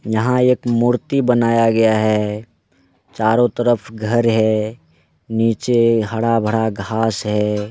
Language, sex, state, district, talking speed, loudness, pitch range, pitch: Hindi, male, Jharkhand, Jamtara, 115 wpm, -17 LUFS, 105-115 Hz, 110 Hz